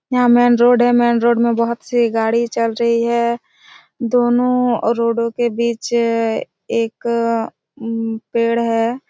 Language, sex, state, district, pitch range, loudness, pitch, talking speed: Hindi, female, Chhattisgarh, Raigarh, 230-240 Hz, -17 LUFS, 235 Hz, 140 wpm